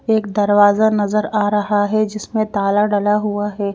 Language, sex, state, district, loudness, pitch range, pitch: Hindi, female, Madhya Pradesh, Bhopal, -17 LUFS, 205-215 Hz, 210 Hz